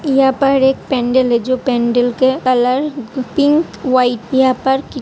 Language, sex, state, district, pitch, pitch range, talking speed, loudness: Hindi, female, Uttar Pradesh, Hamirpur, 260 Hz, 250-270 Hz, 165 wpm, -15 LUFS